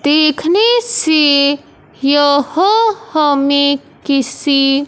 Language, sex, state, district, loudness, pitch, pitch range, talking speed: Hindi, male, Punjab, Fazilka, -13 LUFS, 290 Hz, 280-325 Hz, 60 wpm